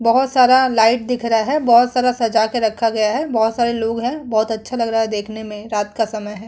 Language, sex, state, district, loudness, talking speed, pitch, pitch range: Hindi, female, Uttar Pradesh, Muzaffarnagar, -17 LUFS, 260 wpm, 230 Hz, 220-245 Hz